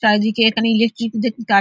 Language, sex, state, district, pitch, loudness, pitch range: Bengali, female, West Bengal, Dakshin Dinajpur, 225 Hz, -17 LUFS, 215-230 Hz